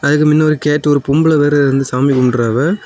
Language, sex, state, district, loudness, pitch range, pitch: Tamil, male, Tamil Nadu, Kanyakumari, -12 LUFS, 135-150 Hz, 145 Hz